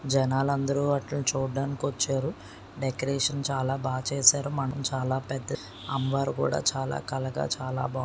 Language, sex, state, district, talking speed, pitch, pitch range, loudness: Telugu, male, Andhra Pradesh, Srikakulam, 125 wpm, 135 Hz, 130-140 Hz, -28 LUFS